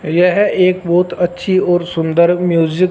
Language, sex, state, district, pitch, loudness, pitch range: Hindi, male, Punjab, Fazilka, 175 Hz, -14 LUFS, 170-180 Hz